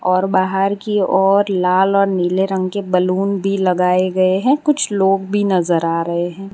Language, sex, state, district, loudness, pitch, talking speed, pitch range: Hindi, female, Gujarat, Valsad, -16 LUFS, 190 Hz, 190 wpm, 185-195 Hz